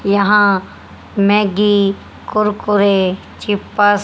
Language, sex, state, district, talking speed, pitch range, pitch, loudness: Hindi, female, Haryana, Charkhi Dadri, 75 wpm, 200-210 Hz, 205 Hz, -15 LUFS